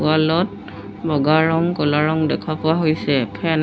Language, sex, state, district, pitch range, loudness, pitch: Assamese, female, Assam, Sonitpur, 145-160 Hz, -19 LUFS, 155 Hz